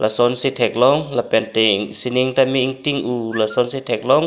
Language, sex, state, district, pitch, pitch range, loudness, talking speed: Karbi, male, Assam, Karbi Anglong, 125 Hz, 110-130 Hz, -18 LUFS, 195 wpm